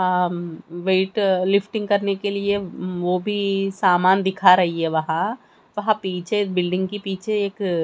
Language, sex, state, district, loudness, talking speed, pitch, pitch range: Hindi, female, Haryana, Charkhi Dadri, -21 LUFS, 155 wpm, 190 Hz, 180-200 Hz